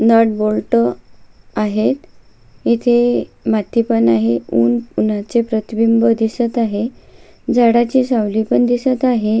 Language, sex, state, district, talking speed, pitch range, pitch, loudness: Marathi, female, Maharashtra, Sindhudurg, 110 wpm, 205-240 Hz, 225 Hz, -16 LUFS